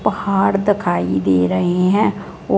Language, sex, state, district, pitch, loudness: Hindi, female, Punjab, Fazilka, 180 Hz, -17 LUFS